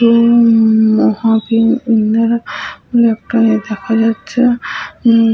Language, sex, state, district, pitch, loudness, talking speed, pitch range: Bengali, female, West Bengal, Paschim Medinipur, 225 Hz, -12 LUFS, 90 wpm, 220-235 Hz